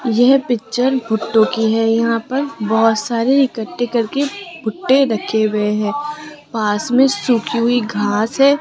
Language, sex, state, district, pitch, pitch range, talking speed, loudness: Hindi, female, Rajasthan, Jaipur, 235 Hz, 220-270 Hz, 145 wpm, -16 LUFS